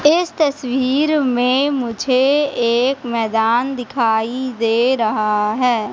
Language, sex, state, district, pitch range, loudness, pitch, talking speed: Hindi, female, Madhya Pradesh, Katni, 230-270 Hz, -17 LUFS, 250 Hz, 100 wpm